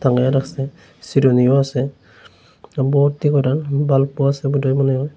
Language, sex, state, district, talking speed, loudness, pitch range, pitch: Bengali, male, Tripura, Unakoti, 95 wpm, -17 LUFS, 130-140 Hz, 135 Hz